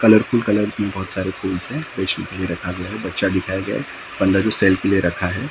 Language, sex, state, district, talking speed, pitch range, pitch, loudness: Hindi, male, Maharashtra, Mumbai Suburban, 230 wpm, 95-105 Hz, 95 Hz, -20 LUFS